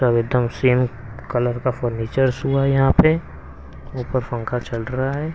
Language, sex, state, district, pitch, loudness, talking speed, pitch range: Hindi, male, Haryana, Rohtak, 125 Hz, -20 LUFS, 170 wpm, 115-130 Hz